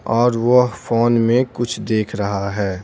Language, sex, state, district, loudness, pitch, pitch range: Hindi, male, Bihar, Patna, -18 LUFS, 115 Hz, 105-120 Hz